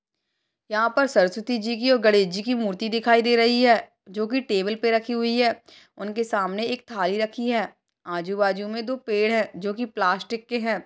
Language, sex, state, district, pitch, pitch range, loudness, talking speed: Hindi, male, Uttar Pradesh, Hamirpur, 225 Hz, 205-235 Hz, -23 LUFS, 205 wpm